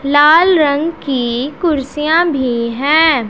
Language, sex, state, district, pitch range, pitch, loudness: Hindi, female, Punjab, Pathankot, 260-320 Hz, 295 Hz, -13 LUFS